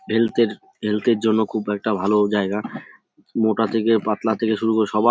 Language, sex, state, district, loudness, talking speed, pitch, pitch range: Bengali, male, West Bengal, North 24 Parganas, -21 LUFS, 190 wpm, 110 Hz, 105-110 Hz